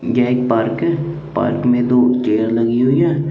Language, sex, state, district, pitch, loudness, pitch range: Hindi, male, Chandigarh, Chandigarh, 125 Hz, -16 LUFS, 115-155 Hz